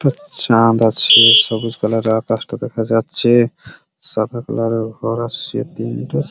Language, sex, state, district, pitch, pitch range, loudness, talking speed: Bengali, male, West Bengal, Purulia, 115 Hz, 110-120 Hz, -15 LUFS, 150 wpm